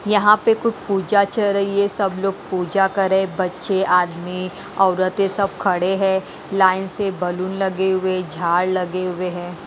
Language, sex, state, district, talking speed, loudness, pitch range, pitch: Hindi, female, Haryana, Rohtak, 160 wpm, -19 LUFS, 185-195 Hz, 190 Hz